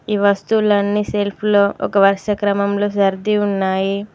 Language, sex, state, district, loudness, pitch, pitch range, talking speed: Telugu, female, Telangana, Mahabubabad, -17 LUFS, 200 Hz, 195-205 Hz, 130 wpm